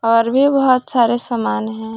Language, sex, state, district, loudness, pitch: Hindi, female, Jharkhand, Palamu, -16 LUFS, 235 Hz